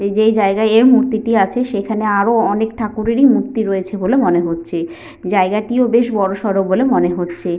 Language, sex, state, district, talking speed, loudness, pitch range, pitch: Bengali, female, West Bengal, Paschim Medinipur, 215 wpm, -15 LUFS, 195-230 Hz, 210 Hz